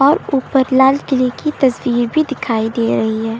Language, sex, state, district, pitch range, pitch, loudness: Hindi, female, Uttar Pradesh, Lucknow, 235-280 Hz, 265 Hz, -15 LUFS